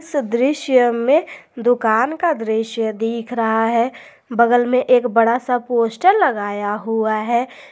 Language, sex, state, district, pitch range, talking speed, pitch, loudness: Hindi, female, Jharkhand, Garhwa, 225-255 Hz, 140 wpm, 235 Hz, -18 LUFS